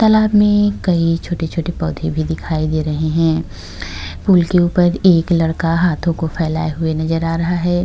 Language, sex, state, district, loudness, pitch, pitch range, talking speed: Hindi, female, Uttar Pradesh, Jyotiba Phule Nagar, -16 LUFS, 165 Hz, 160-175 Hz, 175 wpm